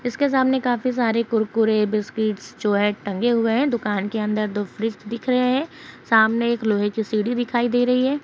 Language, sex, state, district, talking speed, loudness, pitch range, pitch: Hindi, female, Uttar Pradesh, Jyotiba Phule Nagar, 210 wpm, -21 LUFS, 215-250 Hz, 230 Hz